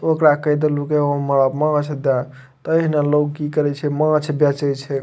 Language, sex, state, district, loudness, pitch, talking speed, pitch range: Maithili, male, Bihar, Madhepura, -18 LUFS, 150 Hz, 190 wpm, 140-150 Hz